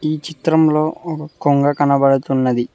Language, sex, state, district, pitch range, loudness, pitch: Telugu, male, Telangana, Mahabubabad, 135-155 Hz, -16 LUFS, 145 Hz